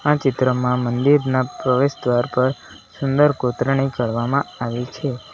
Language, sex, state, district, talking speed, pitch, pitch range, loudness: Gujarati, male, Gujarat, Valsad, 125 wpm, 130 Hz, 120-140 Hz, -20 LUFS